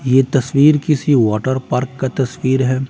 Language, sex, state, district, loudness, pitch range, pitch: Hindi, male, Bihar, Patna, -16 LUFS, 130-140 Hz, 130 Hz